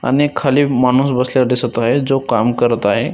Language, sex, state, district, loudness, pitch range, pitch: Marathi, male, Maharashtra, Dhule, -15 LUFS, 120-135 Hz, 125 Hz